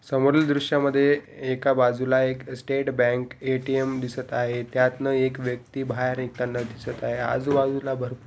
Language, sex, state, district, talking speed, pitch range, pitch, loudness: Marathi, male, Maharashtra, Pune, 150 wpm, 125-135 Hz, 130 Hz, -24 LUFS